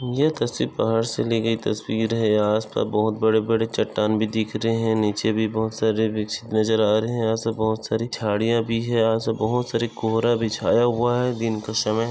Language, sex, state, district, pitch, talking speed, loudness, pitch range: Hindi, male, Maharashtra, Nagpur, 110 Hz, 215 wpm, -22 LUFS, 110-115 Hz